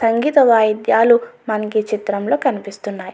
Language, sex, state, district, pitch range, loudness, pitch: Telugu, female, Andhra Pradesh, Anantapur, 205-235 Hz, -16 LUFS, 215 Hz